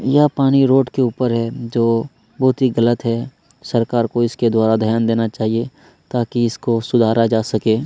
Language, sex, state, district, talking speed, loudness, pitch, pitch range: Hindi, male, Chhattisgarh, Kabirdham, 185 wpm, -17 LUFS, 120 Hz, 115-130 Hz